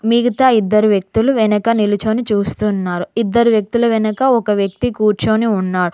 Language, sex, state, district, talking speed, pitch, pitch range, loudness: Telugu, female, Telangana, Mahabubabad, 130 wpm, 215 Hz, 205-230 Hz, -15 LUFS